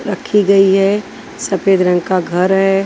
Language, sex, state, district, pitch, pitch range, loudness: Hindi, female, Maharashtra, Washim, 195 Hz, 185-200 Hz, -13 LUFS